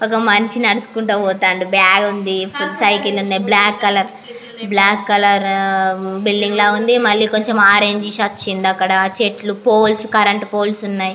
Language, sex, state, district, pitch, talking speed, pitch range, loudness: Telugu, female, Andhra Pradesh, Anantapur, 205 Hz, 140 wpm, 195-215 Hz, -14 LUFS